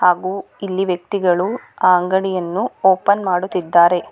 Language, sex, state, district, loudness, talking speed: Kannada, female, Karnataka, Bangalore, -17 LUFS, 100 wpm